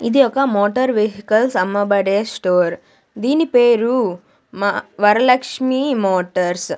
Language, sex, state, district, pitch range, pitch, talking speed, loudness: Telugu, female, Andhra Pradesh, Sri Satya Sai, 195-255 Hz, 215 Hz, 105 wpm, -17 LUFS